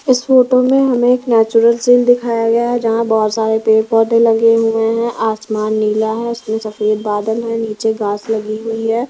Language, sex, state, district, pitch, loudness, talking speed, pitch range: Hindi, female, Himachal Pradesh, Shimla, 225 Hz, -14 LUFS, 190 wpm, 220-235 Hz